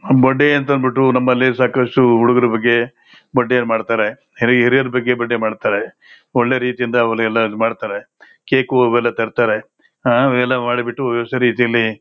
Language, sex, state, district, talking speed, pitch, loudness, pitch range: Kannada, male, Karnataka, Shimoga, 115 wpm, 125 Hz, -16 LUFS, 120-130 Hz